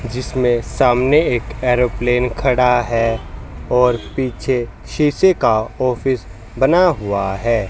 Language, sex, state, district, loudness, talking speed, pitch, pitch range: Hindi, male, Haryana, Charkhi Dadri, -17 LUFS, 110 wpm, 125 Hz, 115-130 Hz